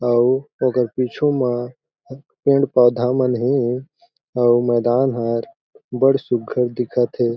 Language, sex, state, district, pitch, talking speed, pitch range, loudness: Chhattisgarhi, male, Chhattisgarh, Jashpur, 125 Hz, 115 wpm, 120-135 Hz, -19 LUFS